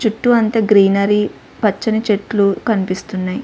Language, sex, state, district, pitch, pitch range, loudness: Telugu, female, Andhra Pradesh, Sri Satya Sai, 210 Hz, 195-220 Hz, -16 LUFS